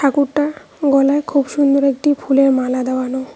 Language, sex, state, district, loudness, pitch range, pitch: Bengali, female, West Bengal, Cooch Behar, -16 LUFS, 265-290 Hz, 275 Hz